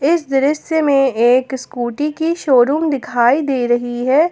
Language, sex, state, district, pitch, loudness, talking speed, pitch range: Hindi, female, Jharkhand, Ranchi, 270 Hz, -16 LUFS, 155 wpm, 245-300 Hz